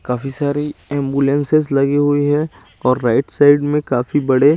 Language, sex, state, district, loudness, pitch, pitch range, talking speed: Hindi, male, Chandigarh, Chandigarh, -16 LUFS, 145 Hz, 135-145 Hz, 160 wpm